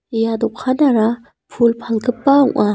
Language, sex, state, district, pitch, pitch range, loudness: Garo, female, Meghalaya, South Garo Hills, 235 Hz, 225-255 Hz, -16 LUFS